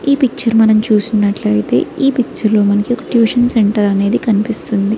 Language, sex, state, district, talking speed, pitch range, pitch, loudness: Telugu, female, Andhra Pradesh, Srikakulam, 155 wpm, 205-240 Hz, 220 Hz, -13 LUFS